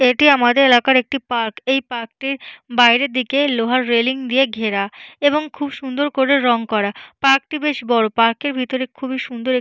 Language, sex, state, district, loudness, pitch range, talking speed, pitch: Bengali, female, Jharkhand, Jamtara, -17 LUFS, 235-275 Hz, 185 wpm, 255 Hz